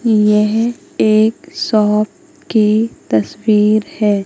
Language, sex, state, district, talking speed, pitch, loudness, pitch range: Hindi, female, Madhya Pradesh, Katni, 85 wpm, 215 Hz, -14 LUFS, 210-225 Hz